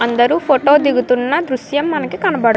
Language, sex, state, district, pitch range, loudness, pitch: Telugu, female, Andhra Pradesh, Krishna, 250-295 Hz, -15 LUFS, 280 Hz